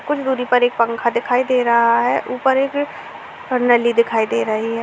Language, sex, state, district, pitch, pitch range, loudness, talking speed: Hindi, female, Uttar Pradesh, Gorakhpur, 240 Hz, 235-255 Hz, -17 LUFS, 200 wpm